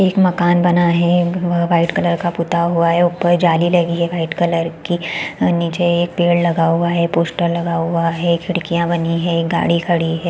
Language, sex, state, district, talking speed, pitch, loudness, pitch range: Hindi, female, Chhattisgarh, Balrampur, 205 wpm, 170 Hz, -16 LUFS, 170-175 Hz